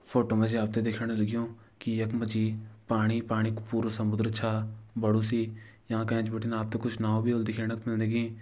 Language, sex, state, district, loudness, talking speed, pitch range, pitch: Garhwali, male, Uttarakhand, Uttarkashi, -30 LUFS, 230 wpm, 110-115 Hz, 110 Hz